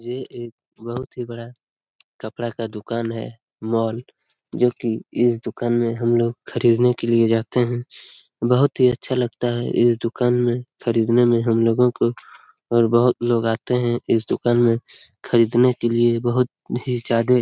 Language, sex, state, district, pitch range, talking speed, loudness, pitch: Hindi, male, Bihar, Lakhisarai, 115-125 Hz, 170 wpm, -20 LUFS, 120 Hz